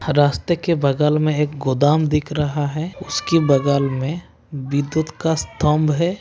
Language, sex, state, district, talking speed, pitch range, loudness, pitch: Hindi, male, Bihar, Kishanganj, 155 wpm, 145-160 Hz, -19 LUFS, 150 Hz